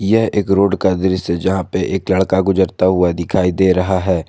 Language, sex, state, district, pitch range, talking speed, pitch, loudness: Hindi, male, Jharkhand, Garhwa, 90-95 Hz, 210 wpm, 95 Hz, -15 LUFS